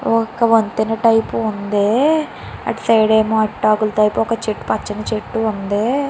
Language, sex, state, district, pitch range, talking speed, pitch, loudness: Telugu, female, Andhra Pradesh, Chittoor, 215-230 Hz, 120 wpm, 220 Hz, -17 LUFS